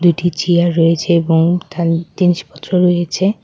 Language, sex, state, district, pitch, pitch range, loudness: Bengali, female, West Bengal, Cooch Behar, 175 Hz, 165-180 Hz, -15 LUFS